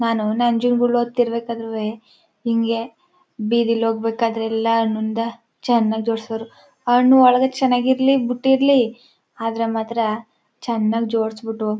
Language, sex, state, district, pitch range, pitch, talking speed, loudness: Kannada, female, Karnataka, Chamarajanagar, 225-245 Hz, 230 Hz, 100 wpm, -19 LUFS